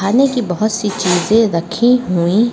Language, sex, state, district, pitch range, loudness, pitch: Hindi, female, Uttar Pradesh, Lucknow, 180-235 Hz, -15 LUFS, 215 Hz